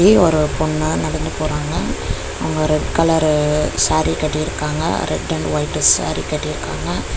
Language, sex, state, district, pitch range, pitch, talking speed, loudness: Tamil, female, Tamil Nadu, Chennai, 150-160 Hz, 155 Hz, 125 wpm, -18 LUFS